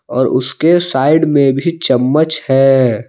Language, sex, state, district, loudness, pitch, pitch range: Hindi, male, Jharkhand, Palamu, -12 LUFS, 135 Hz, 130-160 Hz